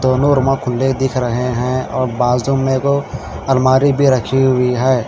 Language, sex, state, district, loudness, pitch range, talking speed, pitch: Hindi, male, Haryana, Charkhi Dadri, -15 LUFS, 125-135 Hz, 165 wpm, 130 Hz